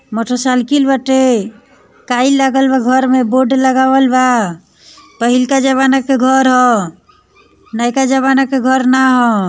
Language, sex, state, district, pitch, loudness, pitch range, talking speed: Bhojpuri, female, Bihar, East Champaran, 260 Hz, -12 LUFS, 245-265 Hz, 140 wpm